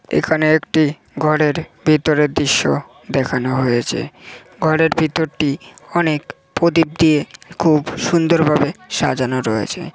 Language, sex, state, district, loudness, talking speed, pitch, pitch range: Bengali, male, West Bengal, Jhargram, -17 LUFS, 110 wpm, 155 Hz, 145-160 Hz